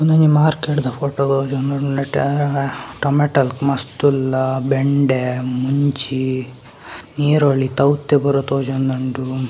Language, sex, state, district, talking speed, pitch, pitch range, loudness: Tulu, male, Karnataka, Dakshina Kannada, 90 wpm, 140 Hz, 130-145 Hz, -18 LUFS